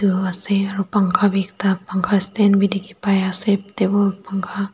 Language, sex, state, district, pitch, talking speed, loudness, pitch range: Nagamese, female, Nagaland, Dimapur, 195 Hz, 140 wpm, -19 LUFS, 190-200 Hz